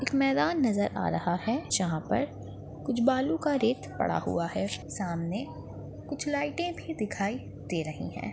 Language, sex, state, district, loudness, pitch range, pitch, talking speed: Hindi, female, Chhattisgarh, Balrampur, -30 LUFS, 180-285 Hz, 235 Hz, 165 wpm